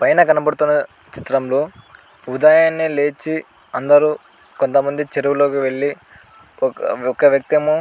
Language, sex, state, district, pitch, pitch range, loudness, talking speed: Telugu, male, Andhra Pradesh, Anantapur, 145 Hz, 140-155 Hz, -17 LUFS, 100 wpm